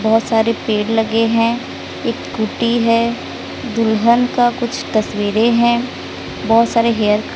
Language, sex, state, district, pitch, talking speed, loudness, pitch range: Hindi, female, Odisha, Sambalpur, 230 Hz, 140 wpm, -16 LUFS, 220-235 Hz